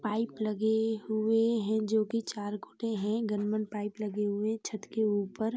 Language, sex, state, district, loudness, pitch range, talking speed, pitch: Hindi, female, Uttar Pradesh, Jyotiba Phule Nagar, -31 LUFS, 210-220 Hz, 170 wpm, 215 Hz